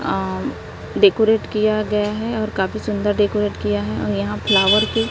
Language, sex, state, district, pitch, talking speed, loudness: Hindi, female, Maharashtra, Gondia, 200 Hz, 175 wpm, -19 LUFS